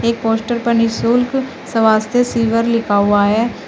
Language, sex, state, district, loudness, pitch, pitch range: Hindi, female, Uttar Pradesh, Shamli, -15 LUFS, 230 Hz, 220-240 Hz